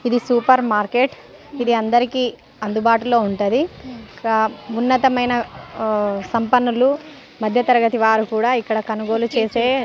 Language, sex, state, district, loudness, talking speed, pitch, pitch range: Telugu, female, Telangana, Nalgonda, -18 LUFS, 90 wpm, 235 Hz, 220-250 Hz